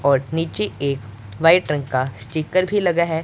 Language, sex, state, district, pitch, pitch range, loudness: Hindi, male, Punjab, Pathankot, 145 Hz, 130-165 Hz, -20 LUFS